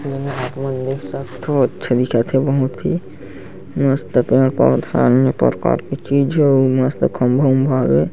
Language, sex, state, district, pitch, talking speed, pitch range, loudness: Chhattisgarhi, male, Chhattisgarh, Sarguja, 130 Hz, 155 wpm, 125-140 Hz, -17 LUFS